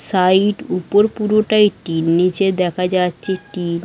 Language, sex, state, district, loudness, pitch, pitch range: Bengali, female, West Bengal, Dakshin Dinajpur, -16 LUFS, 185 Hz, 180-205 Hz